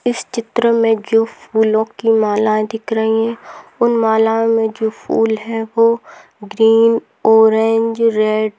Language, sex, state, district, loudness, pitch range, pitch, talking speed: Hindi, female, Maharashtra, Dhule, -15 LUFS, 220-230 Hz, 225 Hz, 140 wpm